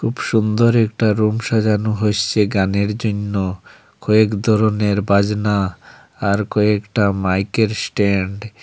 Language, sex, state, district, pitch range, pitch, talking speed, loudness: Bengali, male, Assam, Hailakandi, 100-110 Hz, 105 Hz, 110 wpm, -18 LUFS